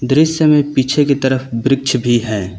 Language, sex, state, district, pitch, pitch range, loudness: Hindi, male, Uttar Pradesh, Lucknow, 130 Hz, 120-145 Hz, -14 LUFS